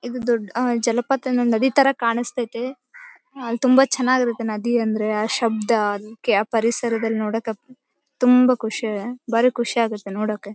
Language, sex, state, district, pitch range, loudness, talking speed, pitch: Kannada, female, Karnataka, Bellary, 220-250 Hz, -21 LUFS, 125 wpm, 235 Hz